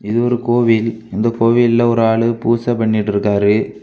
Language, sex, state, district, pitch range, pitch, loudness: Tamil, male, Tamil Nadu, Kanyakumari, 110-120 Hz, 115 Hz, -15 LUFS